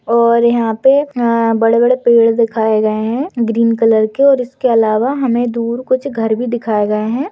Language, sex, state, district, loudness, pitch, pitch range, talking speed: Hindi, female, Goa, North and South Goa, -13 LUFS, 235 Hz, 225-250 Hz, 195 wpm